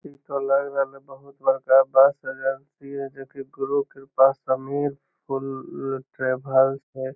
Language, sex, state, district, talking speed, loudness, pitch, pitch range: Magahi, male, Bihar, Lakhisarai, 135 wpm, -23 LUFS, 135 Hz, 135-140 Hz